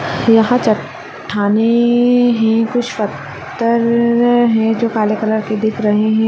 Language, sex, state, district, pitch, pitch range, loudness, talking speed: Hindi, female, Chhattisgarh, Sarguja, 225 Hz, 220-235 Hz, -14 LUFS, 125 wpm